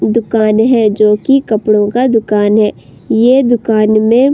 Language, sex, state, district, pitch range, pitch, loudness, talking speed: Hindi, female, Uttar Pradesh, Budaun, 215-240 Hz, 220 Hz, -11 LUFS, 165 wpm